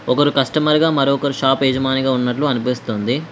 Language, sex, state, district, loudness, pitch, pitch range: Telugu, female, Telangana, Mahabubabad, -17 LUFS, 135 Hz, 130-145 Hz